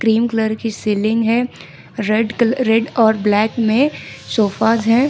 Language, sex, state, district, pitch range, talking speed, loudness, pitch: Hindi, female, Jharkhand, Ranchi, 220-235 Hz, 155 wpm, -17 LUFS, 225 Hz